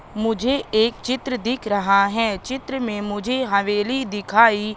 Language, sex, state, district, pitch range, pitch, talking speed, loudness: Hindi, female, Madhya Pradesh, Katni, 205-255 Hz, 225 Hz, 140 wpm, -21 LUFS